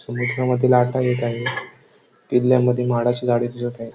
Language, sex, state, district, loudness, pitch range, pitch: Marathi, male, Maharashtra, Sindhudurg, -20 LUFS, 120-125 Hz, 125 Hz